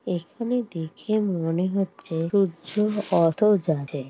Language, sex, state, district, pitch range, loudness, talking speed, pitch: Bengali, male, West Bengal, Jalpaiguri, 165-210 Hz, -24 LUFS, 100 wpm, 180 Hz